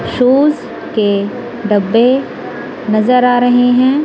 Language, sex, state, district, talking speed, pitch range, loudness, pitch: Hindi, female, Punjab, Kapurthala, 105 wpm, 215-250 Hz, -12 LUFS, 245 Hz